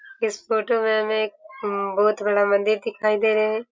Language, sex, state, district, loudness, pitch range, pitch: Hindi, female, Jharkhand, Sahebganj, -22 LUFS, 205-220 Hz, 215 Hz